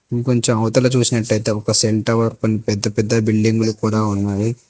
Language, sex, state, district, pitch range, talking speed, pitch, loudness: Telugu, male, Telangana, Hyderabad, 110-120 Hz, 165 wpm, 110 Hz, -17 LUFS